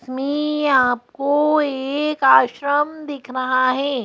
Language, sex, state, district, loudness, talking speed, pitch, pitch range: Hindi, female, Madhya Pradesh, Bhopal, -18 LUFS, 105 wpm, 280 Hz, 255-295 Hz